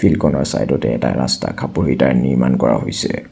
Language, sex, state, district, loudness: Assamese, male, Assam, Sonitpur, -16 LUFS